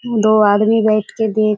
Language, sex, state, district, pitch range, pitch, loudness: Hindi, female, Bihar, Kishanganj, 215-220 Hz, 215 Hz, -14 LUFS